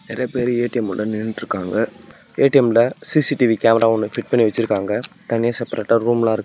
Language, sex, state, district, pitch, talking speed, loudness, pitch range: Tamil, male, Tamil Nadu, Namakkal, 115 Hz, 160 wpm, -19 LUFS, 110-120 Hz